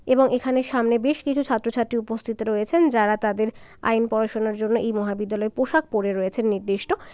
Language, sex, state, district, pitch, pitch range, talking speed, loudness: Bengali, female, West Bengal, Dakshin Dinajpur, 225 Hz, 215-250 Hz, 160 wpm, -23 LUFS